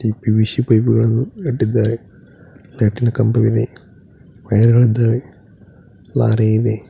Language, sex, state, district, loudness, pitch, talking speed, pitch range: Kannada, male, Karnataka, Koppal, -16 LUFS, 115 Hz, 80 wpm, 110-120 Hz